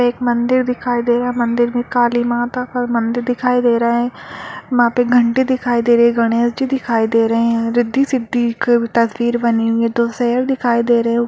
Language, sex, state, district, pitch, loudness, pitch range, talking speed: Hindi, female, Bihar, Purnia, 240 Hz, -16 LUFS, 235-245 Hz, 220 wpm